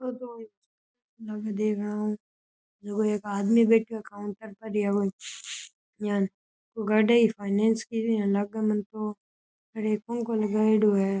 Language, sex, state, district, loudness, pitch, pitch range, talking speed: Rajasthani, male, Rajasthan, Churu, -27 LUFS, 215 Hz, 205-220 Hz, 80 wpm